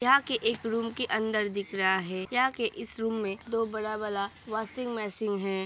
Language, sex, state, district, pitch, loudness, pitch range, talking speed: Hindi, female, Uttar Pradesh, Hamirpur, 220 Hz, -30 LUFS, 200-230 Hz, 200 wpm